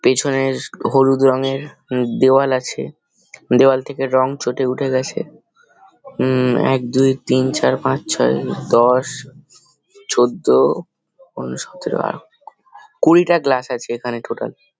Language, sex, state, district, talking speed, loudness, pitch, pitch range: Bengali, male, West Bengal, Paschim Medinipur, 120 wpm, -17 LUFS, 135 Hz, 130-150 Hz